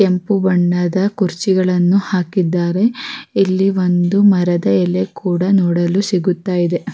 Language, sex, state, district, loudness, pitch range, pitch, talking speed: Kannada, female, Karnataka, Raichur, -15 LUFS, 175-195 Hz, 185 Hz, 105 wpm